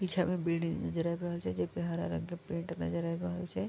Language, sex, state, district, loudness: Maithili, female, Bihar, Vaishali, -35 LUFS